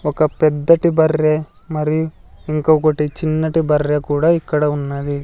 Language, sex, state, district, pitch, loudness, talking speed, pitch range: Telugu, male, Andhra Pradesh, Sri Satya Sai, 155 Hz, -17 LUFS, 115 wpm, 150-160 Hz